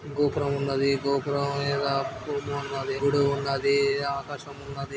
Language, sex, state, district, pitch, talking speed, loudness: Telugu, male, Andhra Pradesh, Krishna, 140 Hz, 120 wpm, -26 LUFS